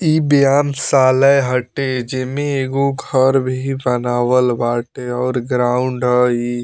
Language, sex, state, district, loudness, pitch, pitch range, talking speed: Bhojpuri, male, Bihar, Muzaffarpur, -16 LUFS, 130 Hz, 125-135 Hz, 120 wpm